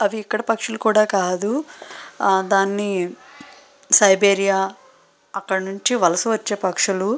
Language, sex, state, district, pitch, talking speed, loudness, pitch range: Telugu, female, Andhra Pradesh, Srikakulam, 200 Hz, 110 wpm, -19 LUFS, 195-220 Hz